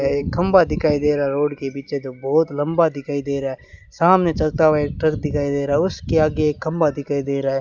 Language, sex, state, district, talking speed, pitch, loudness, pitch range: Hindi, male, Rajasthan, Bikaner, 260 wpm, 145 Hz, -20 LUFS, 140-155 Hz